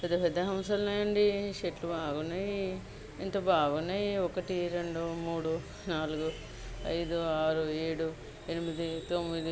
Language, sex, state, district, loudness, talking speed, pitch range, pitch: Telugu, female, Andhra Pradesh, Guntur, -33 LUFS, 105 wpm, 160-190 Hz, 170 Hz